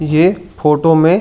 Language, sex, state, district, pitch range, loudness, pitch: Chhattisgarhi, male, Chhattisgarh, Raigarh, 155-175 Hz, -13 LUFS, 160 Hz